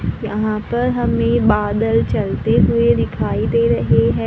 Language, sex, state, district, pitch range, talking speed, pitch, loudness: Hindi, female, Maharashtra, Gondia, 110-140 Hz, 140 wpm, 115 Hz, -17 LUFS